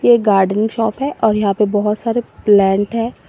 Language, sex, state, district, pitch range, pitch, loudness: Hindi, female, Assam, Sonitpur, 205-230 Hz, 215 Hz, -15 LUFS